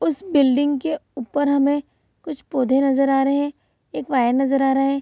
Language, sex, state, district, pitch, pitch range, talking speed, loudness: Hindi, female, Bihar, Saharsa, 275 Hz, 270-290 Hz, 205 wpm, -20 LUFS